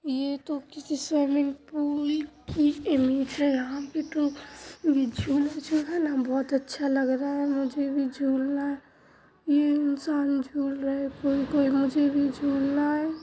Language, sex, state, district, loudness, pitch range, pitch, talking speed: Hindi, female, Bihar, Begusarai, -27 LUFS, 275-295 Hz, 285 Hz, 160 wpm